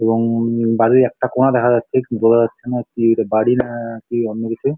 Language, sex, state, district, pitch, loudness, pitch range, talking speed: Bengali, male, West Bengal, Jalpaiguri, 115 Hz, -17 LUFS, 115-125 Hz, 240 wpm